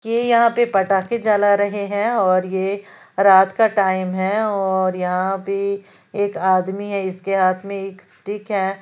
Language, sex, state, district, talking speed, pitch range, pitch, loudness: Hindi, female, Uttar Pradesh, Lalitpur, 170 wpm, 190-205 Hz, 195 Hz, -19 LUFS